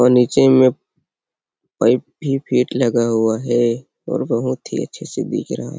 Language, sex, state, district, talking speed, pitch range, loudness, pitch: Hindi, male, Chhattisgarh, Sarguja, 165 wpm, 120-130 Hz, -18 LUFS, 125 Hz